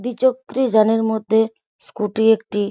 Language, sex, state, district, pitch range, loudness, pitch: Bengali, female, West Bengal, Purulia, 215-235 Hz, -18 LUFS, 225 Hz